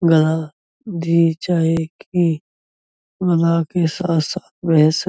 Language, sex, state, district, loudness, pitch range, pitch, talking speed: Hindi, male, Uttar Pradesh, Budaun, -18 LUFS, 160-175 Hz, 165 Hz, 130 wpm